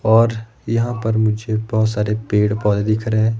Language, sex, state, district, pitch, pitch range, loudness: Hindi, male, Himachal Pradesh, Shimla, 110 Hz, 105-115 Hz, -18 LUFS